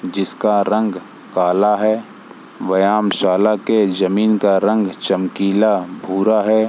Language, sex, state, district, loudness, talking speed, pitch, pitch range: Hindi, male, Bihar, Sitamarhi, -16 LUFS, 105 wpm, 105 Hz, 95-110 Hz